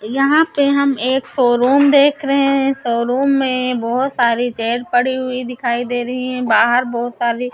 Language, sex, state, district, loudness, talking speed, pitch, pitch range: Hindi, female, Chhattisgarh, Raipur, -16 LUFS, 175 wpm, 250 Hz, 240-275 Hz